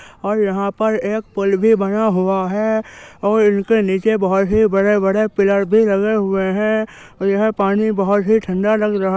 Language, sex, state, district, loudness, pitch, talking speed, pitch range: Hindi, male, Uttar Pradesh, Jyotiba Phule Nagar, -16 LUFS, 205 Hz, 195 wpm, 195-215 Hz